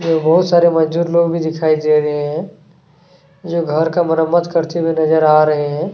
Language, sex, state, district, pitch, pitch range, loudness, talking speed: Hindi, male, Chhattisgarh, Kabirdham, 160 Hz, 155-170 Hz, -15 LUFS, 200 wpm